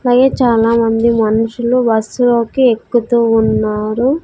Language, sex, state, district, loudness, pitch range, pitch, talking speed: Telugu, female, Andhra Pradesh, Sri Satya Sai, -13 LUFS, 225-245 Hz, 235 Hz, 85 wpm